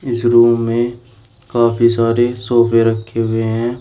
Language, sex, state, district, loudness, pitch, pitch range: Hindi, male, Uttar Pradesh, Shamli, -15 LUFS, 115 Hz, 115-120 Hz